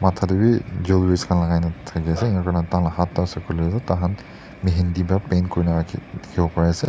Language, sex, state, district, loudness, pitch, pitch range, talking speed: Nagamese, male, Nagaland, Dimapur, -21 LUFS, 90 Hz, 85-95 Hz, 225 wpm